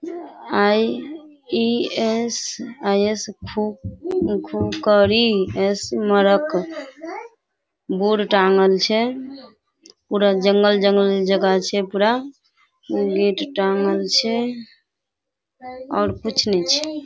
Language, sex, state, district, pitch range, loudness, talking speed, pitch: Maithili, female, Bihar, Supaul, 200-265 Hz, -19 LUFS, 70 wpm, 210 Hz